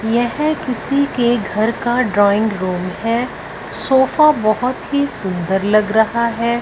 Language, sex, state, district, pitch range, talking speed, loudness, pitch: Hindi, female, Punjab, Fazilka, 210-250 Hz, 135 wpm, -17 LUFS, 235 Hz